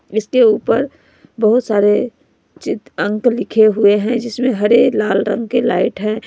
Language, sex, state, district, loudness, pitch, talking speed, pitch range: Hindi, female, Jharkhand, Ranchi, -15 LUFS, 220 Hz, 155 wpm, 210-240 Hz